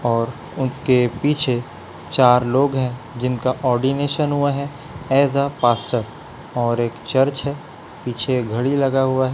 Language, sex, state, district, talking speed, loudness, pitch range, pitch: Hindi, male, Chhattisgarh, Raipur, 135 wpm, -19 LUFS, 120-140 Hz, 130 Hz